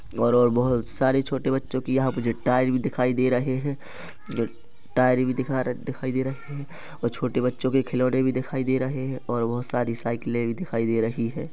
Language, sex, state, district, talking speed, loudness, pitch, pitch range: Hindi, male, Chhattisgarh, Rajnandgaon, 210 wpm, -25 LUFS, 125 Hz, 120-130 Hz